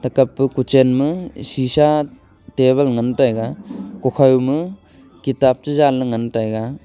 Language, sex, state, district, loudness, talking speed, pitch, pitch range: Wancho, male, Arunachal Pradesh, Longding, -17 LUFS, 130 wpm, 130 Hz, 125-140 Hz